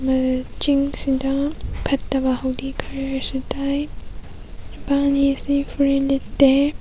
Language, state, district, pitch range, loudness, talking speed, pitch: Manipuri, Manipur, Imphal West, 265-280 Hz, -21 LUFS, 95 wpm, 275 Hz